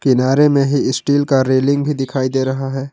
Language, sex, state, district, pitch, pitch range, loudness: Hindi, male, Jharkhand, Ranchi, 135 Hz, 130-140 Hz, -15 LUFS